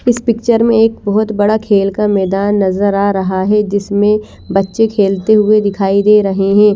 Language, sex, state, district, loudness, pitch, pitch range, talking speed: Hindi, female, Chandigarh, Chandigarh, -12 LUFS, 205 Hz, 195-215 Hz, 185 wpm